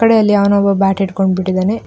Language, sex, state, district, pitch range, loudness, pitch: Kannada, female, Karnataka, Dakshina Kannada, 190-205 Hz, -13 LUFS, 195 Hz